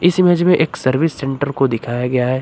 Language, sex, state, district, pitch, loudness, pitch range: Hindi, male, Uttar Pradesh, Lucknow, 135 Hz, -16 LUFS, 130-165 Hz